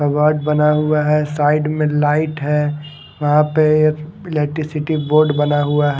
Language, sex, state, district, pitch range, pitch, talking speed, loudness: Hindi, male, Haryana, Charkhi Dadri, 150-155 Hz, 150 Hz, 150 wpm, -16 LUFS